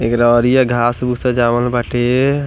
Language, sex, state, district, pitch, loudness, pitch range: Bhojpuri, male, Bihar, East Champaran, 120 Hz, -14 LUFS, 120-125 Hz